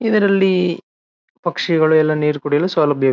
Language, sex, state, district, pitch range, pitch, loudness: Kannada, male, Karnataka, Bellary, 145-180 Hz, 155 Hz, -16 LUFS